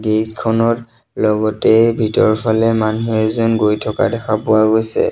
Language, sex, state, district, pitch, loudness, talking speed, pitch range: Assamese, male, Assam, Sonitpur, 110 Hz, -15 LUFS, 130 wpm, 110-115 Hz